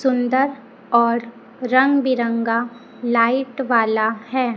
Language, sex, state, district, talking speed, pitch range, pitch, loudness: Hindi, female, Chhattisgarh, Raipur, 90 wpm, 235-260 Hz, 240 Hz, -19 LUFS